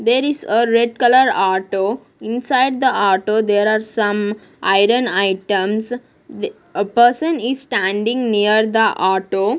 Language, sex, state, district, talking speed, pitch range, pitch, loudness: English, female, Punjab, Kapurthala, 140 wpm, 200-245 Hz, 220 Hz, -16 LUFS